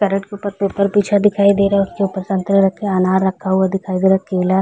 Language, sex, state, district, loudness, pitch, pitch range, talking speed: Hindi, female, Chhattisgarh, Balrampur, -16 LUFS, 195 Hz, 190-200 Hz, 300 wpm